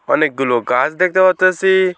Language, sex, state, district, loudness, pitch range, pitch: Bengali, male, West Bengal, Alipurduar, -14 LUFS, 135-185 Hz, 185 Hz